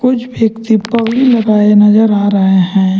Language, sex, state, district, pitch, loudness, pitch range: Hindi, male, Jharkhand, Ranchi, 215 Hz, -10 LUFS, 205-230 Hz